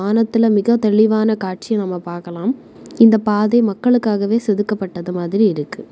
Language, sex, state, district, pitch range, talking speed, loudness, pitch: Tamil, female, Tamil Nadu, Kanyakumari, 190-225 Hz, 120 wpm, -16 LUFS, 215 Hz